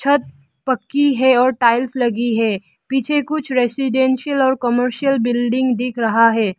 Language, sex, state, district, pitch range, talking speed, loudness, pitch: Hindi, female, Arunachal Pradesh, Lower Dibang Valley, 235-265 Hz, 145 wpm, -17 LUFS, 250 Hz